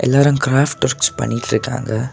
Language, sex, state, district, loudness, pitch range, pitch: Tamil, male, Tamil Nadu, Kanyakumari, -17 LUFS, 120-135 Hz, 130 Hz